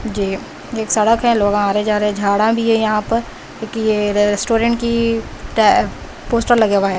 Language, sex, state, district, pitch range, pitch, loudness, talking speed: Hindi, female, Bihar, West Champaran, 205-230 Hz, 220 Hz, -16 LUFS, 225 wpm